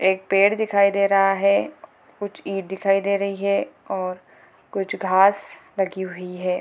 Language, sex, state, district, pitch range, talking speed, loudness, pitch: Hindi, female, Bihar, Gopalganj, 190-200 Hz, 170 wpm, -21 LUFS, 195 Hz